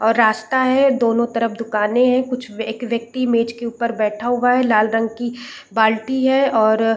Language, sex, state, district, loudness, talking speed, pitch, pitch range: Hindi, female, Chhattisgarh, Raigarh, -18 LUFS, 205 wpm, 235 Hz, 225-250 Hz